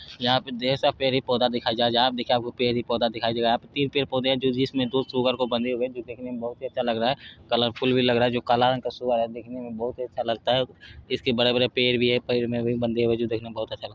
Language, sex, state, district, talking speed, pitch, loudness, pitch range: Hindi, male, Bihar, Jahanabad, 320 wpm, 125 Hz, -24 LUFS, 120-130 Hz